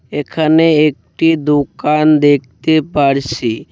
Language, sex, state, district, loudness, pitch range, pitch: Bengali, male, West Bengal, Cooch Behar, -13 LUFS, 140-155 Hz, 150 Hz